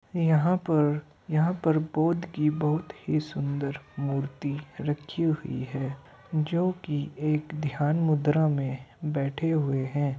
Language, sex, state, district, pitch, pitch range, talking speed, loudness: Hindi, male, Uttar Pradesh, Hamirpur, 150 Hz, 140-160 Hz, 125 wpm, -28 LUFS